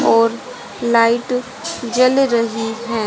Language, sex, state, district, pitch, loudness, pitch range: Hindi, female, Haryana, Rohtak, 235 Hz, -17 LUFS, 230-250 Hz